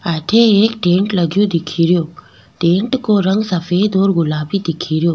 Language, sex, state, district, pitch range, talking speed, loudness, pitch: Rajasthani, female, Rajasthan, Nagaur, 170-205 Hz, 140 wpm, -15 LUFS, 180 Hz